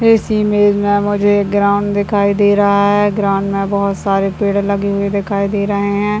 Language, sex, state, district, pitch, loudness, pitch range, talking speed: Hindi, male, Bihar, Purnia, 200 Hz, -14 LUFS, 200-205 Hz, 195 wpm